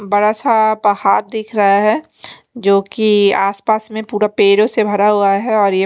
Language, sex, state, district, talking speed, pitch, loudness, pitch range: Hindi, female, Chandigarh, Chandigarh, 195 wpm, 210 Hz, -14 LUFS, 200-220 Hz